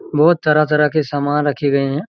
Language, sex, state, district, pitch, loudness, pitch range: Hindi, male, Chhattisgarh, Raigarh, 150 Hz, -16 LUFS, 145-155 Hz